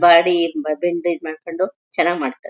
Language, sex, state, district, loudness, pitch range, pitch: Kannada, female, Karnataka, Mysore, -19 LUFS, 160-175 Hz, 170 Hz